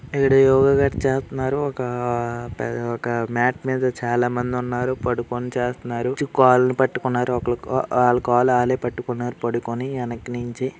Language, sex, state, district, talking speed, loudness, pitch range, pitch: Telugu, male, Andhra Pradesh, Srikakulam, 115 wpm, -21 LUFS, 120-130 Hz, 125 Hz